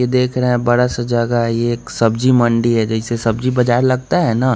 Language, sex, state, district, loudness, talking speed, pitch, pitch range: Hindi, male, Bihar, West Champaran, -16 LUFS, 250 wpm, 120 Hz, 115-125 Hz